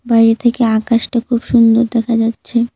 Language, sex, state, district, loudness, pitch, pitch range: Bengali, female, West Bengal, Cooch Behar, -13 LUFS, 230 Hz, 230-240 Hz